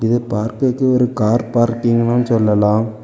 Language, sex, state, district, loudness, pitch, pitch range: Tamil, male, Tamil Nadu, Kanyakumari, -16 LUFS, 115 Hz, 110-120 Hz